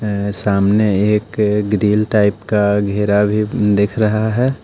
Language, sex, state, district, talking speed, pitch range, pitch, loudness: Hindi, male, Odisha, Nuapada, 140 wpm, 100-105 Hz, 105 Hz, -15 LUFS